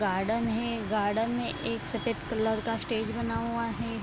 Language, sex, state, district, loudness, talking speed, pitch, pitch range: Hindi, female, Bihar, Vaishali, -30 LUFS, 180 wpm, 225 Hz, 220-230 Hz